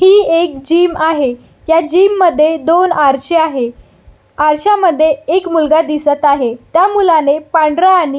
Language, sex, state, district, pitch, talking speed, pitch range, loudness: Marathi, female, Maharashtra, Solapur, 320 Hz, 145 wpm, 295-355 Hz, -12 LUFS